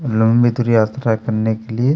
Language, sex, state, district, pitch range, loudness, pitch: Hindi, male, Chhattisgarh, Kabirdham, 110-120 Hz, -16 LUFS, 115 Hz